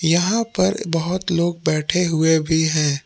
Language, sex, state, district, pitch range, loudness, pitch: Hindi, male, Jharkhand, Palamu, 160-180 Hz, -19 LUFS, 170 Hz